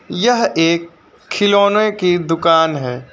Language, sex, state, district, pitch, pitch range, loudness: Hindi, male, Uttar Pradesh, Lucknow, 170 Hz, 165-205 Hz, -15 LUFS